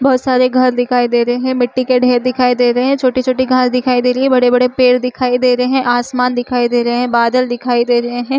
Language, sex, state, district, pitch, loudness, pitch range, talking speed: Chhattisgarhi, female, Chhattisgarh, Rajnandgaon, 250 Hz, -13 LUFS, 245-255 Hz, 255 wpm